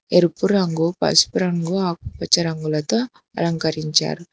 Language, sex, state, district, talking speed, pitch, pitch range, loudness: Telugu, female, Telangana, Hyderabad, 95 wpm, 170 Hz, 155-185 Hz, -20 LUFS